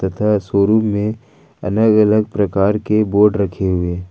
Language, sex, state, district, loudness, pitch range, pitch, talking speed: Hindi, male, Jharkhand, Ranchi, -16 LUFS, 95-105 Hz, 105 Hz, 160 wpm